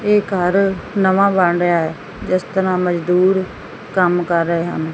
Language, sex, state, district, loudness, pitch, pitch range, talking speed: Punjabi, female, Punjab, Fazilka, -17 LUFS, 185 Hz, 175-190 Hz, 160 wpm